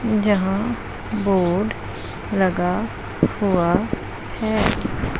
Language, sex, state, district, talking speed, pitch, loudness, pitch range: Hindi, female, Punjab, Pathankot, 60 wpm, 195 Hz, -22 LUFS, 175-210 Hz